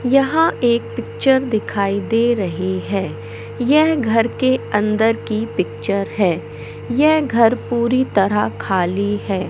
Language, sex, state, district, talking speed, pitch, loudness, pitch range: Hindi, male, Madhya Pradesh, Katni, 125 wpm, 220 Hz, -18 LUFS, 195-250 Hz